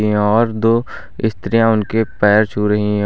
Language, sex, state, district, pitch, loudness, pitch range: Hindi, male, Uttar Pradesh, Lucknow, 110 Hz, -16 LUFS, 105-115 Hz